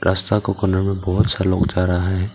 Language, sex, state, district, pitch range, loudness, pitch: Hindi, male, Arunachal Pradesh, Papum Pare, 95-100 Hz, -19 LUFS, 95 Hz